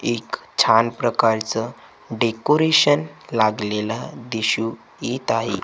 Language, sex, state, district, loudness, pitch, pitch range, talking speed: Marathi, male, Maharashtra, Gondia, -20 LUFS, 115 Hz, 110-120 Hz, 85 wpm